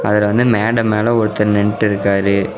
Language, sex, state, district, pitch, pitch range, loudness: Tamil, male, Tamil Nadu, Namakkal, 105 Hz, 100-110 Hz, -15 LUFS